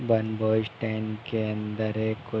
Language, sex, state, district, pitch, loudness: Hindi, male, Uttar Pradesh, Hamirpur, 110 Hz, -28 LUFS